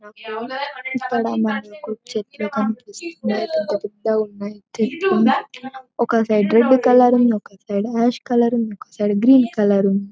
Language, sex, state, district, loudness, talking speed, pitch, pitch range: Telugu, female, Telangana, Karimnagar, -19 LUFS, 135 wpm, 220 Hz, 210-250 Hz